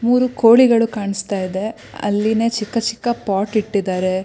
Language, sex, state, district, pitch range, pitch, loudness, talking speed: Kannada, female, Karnataka, Shimoga, 200-230 Hz, 215 Hz, -18 LUFS, 125 wpm